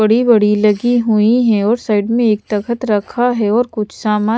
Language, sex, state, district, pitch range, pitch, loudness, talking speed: Hindi, female, Chandigarh, Chandigarh, 210-235 Hz, 220 Hz, -14 LUFS, 205 wpm